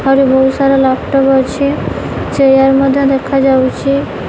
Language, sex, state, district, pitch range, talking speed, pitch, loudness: Odia, female, Odisha, Nuapada, 265-275 Hz, 110 wpm, 270 Hz, -11 LUFS